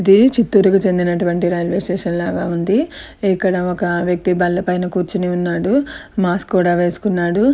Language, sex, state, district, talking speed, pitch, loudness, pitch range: Telugu, female, Andhra Pradesh, Chittoor, 150 wpm, 180 Hz, -17 LUFS, 175-195 Hz